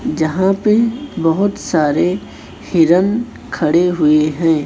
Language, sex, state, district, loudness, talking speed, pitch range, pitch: Hindi, male, Chhattisgarh, Raipur, -15 LUFS, 105 wpm, 160-200 Hz, 175 Hz